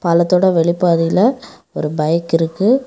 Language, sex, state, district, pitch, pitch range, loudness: Tamil, female, Tamil Nadu, Kanyakumari, 170 Hz, 165-190 Hz, -15 LUFS